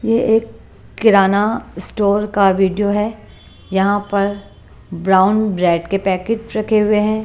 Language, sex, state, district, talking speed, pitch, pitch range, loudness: Hindi, female, Punjab, Pathankot, 130 wpm, 205 Hz, 195-215 Hz, -16 LUFS